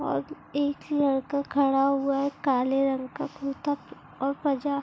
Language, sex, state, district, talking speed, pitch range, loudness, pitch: Hindi, female, Chhattisgarh, Bilaspur, 160 wpm, 275-285 Hz, -27 LUFS, 275 Hz